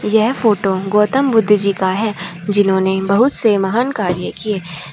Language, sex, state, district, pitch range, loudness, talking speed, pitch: Hindi, female, Uttar Pradesh, Shamli, 190-220 Hz, -15 LUFS, 160 wpm, 205 Hz